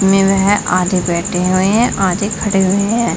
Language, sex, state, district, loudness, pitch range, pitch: Hindi, female, Uttar Pradesh, Saharanpur, -14 LUFS, 185-205 Hz, 195 Hz